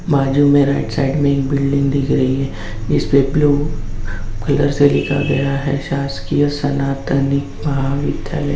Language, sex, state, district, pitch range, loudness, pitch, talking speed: Hindi, male, Bihar, Gaya, 135-145 Hz, -17 LUFS, 140 Hz, 140 wpm